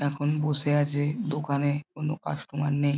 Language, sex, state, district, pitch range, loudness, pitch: Bengali, male, West Bengal, Jhargram, 145-150 Hz, -28 LUFS, 145 Hz